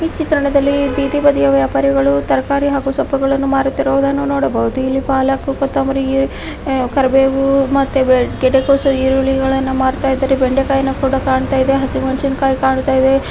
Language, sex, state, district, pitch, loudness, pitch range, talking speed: Kannada, female, Karnataka, Dharwad, 270 Hz, -15 LUFS, 265-275 Hz, 115 wpm